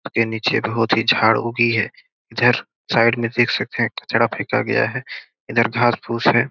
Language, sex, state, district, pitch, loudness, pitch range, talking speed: Hindi, male, Bihar, Gopalganj, 115 Hz, -19 LUFS, 115-120 Hz, 195 wpm